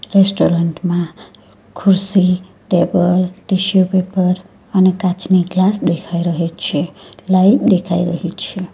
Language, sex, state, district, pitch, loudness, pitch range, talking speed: Gujarati, female, Gujarat, Valsad, 185 Hz, -15 LUFS, 175-190 Hz, 110 wpm